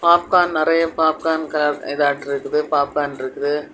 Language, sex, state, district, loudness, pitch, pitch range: Tamil, female, Tamil Nadu, Kanyakumari, -19 LUFS, 150 Hz, 145-160 Hz